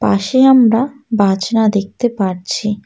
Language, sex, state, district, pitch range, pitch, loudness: Bengali, female, West Bengal, Alipurduar, 195-240 Hz, 215 Hz, -14 LUFS